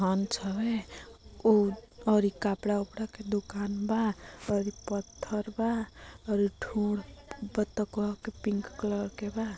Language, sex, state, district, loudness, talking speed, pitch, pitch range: Bhojpuri, female, Bihar, Gopalganj, -31 LUFS, 150 wpm, 210 Hz, 205-220 Hz